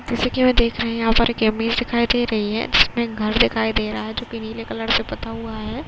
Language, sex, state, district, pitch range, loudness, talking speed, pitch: Hindi, female, Uttarakhand, Uttarkashi, 220-235 Hz, -20 LUFS, 285 wpm, 230 Hz